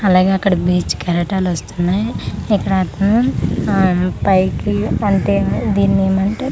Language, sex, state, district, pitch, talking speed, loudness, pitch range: Telugu, female, Andhra Pradesh, Manyam, 185 Hz, 90 wpm, -16 LUFS, 160-195 Hz